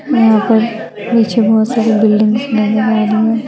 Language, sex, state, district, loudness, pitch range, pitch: Hindi, female, Bihar, Muzaffarpur, -12 LUFS, 215-230 Hz, 220 Hz